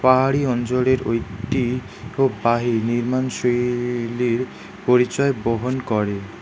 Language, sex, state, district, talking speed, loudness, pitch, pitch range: Bengali, male, West Bengal, Alipurduar, 95 wpm, -21 LUFS, 120 Hz, 115-130 Hz